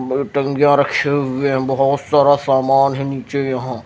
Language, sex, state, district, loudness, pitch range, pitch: Hindi, male, Himachal Pradesh, Shimla, -16 LUFS, 135-140 Hz, 140 Hz